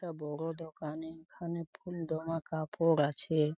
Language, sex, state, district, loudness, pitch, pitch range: Bengali, male, West Bengal, Paschim Medinipur, -35 LUFS, 160 Hz, 155-165 Hz